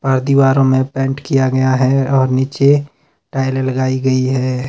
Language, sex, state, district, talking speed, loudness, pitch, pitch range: Hindi, male, Himachal Pradesh, Shimla, 165 wpm, -14 LUFS, 130 Hz, 130-135 Hz